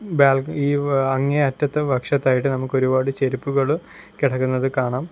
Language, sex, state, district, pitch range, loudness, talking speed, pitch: Malayalam, male, Kerala, Kollam, 130-145 Hz, -20 LUFS, 115 wpm, 135 Hz